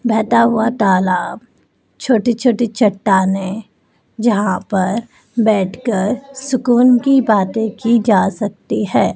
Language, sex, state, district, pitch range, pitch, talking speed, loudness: Hindi, male, Madhya Pradesh, Dhar, 200-240 Hz, 225 Hz, 105 wpm, -15 LUFS